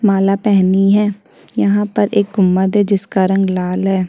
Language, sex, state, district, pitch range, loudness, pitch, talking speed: Hindi, female, Chhattisgarh, Kabirdham, 190-205 Hz, -14 LUFS, 195 Hz, 175 wpm